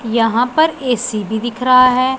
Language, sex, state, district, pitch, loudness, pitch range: Hindi, male, Punjab, Pathankot, 250 Hz, -14 LUFS, 230-255 Hz